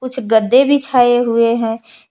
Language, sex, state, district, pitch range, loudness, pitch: Hindi, female, Jharkhand, Palamu, 230-260 Hz, -13 LUFS, 240 Hz